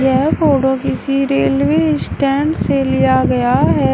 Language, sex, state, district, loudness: Hindi, female, Uttar Pradesh, Shamli, -14 LUFS